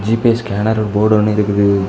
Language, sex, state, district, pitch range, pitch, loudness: Tamil, male, Tamil Nadu, Kanyakumari, 100-110 Hz, 105 Hz, -15 LUFS